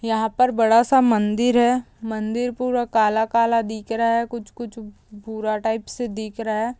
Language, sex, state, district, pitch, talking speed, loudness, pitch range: Hindi, female, Andhra Pradesh, Chittoor, 225 Hz, 185 wpm, -21 LUFS, 220-240 Hz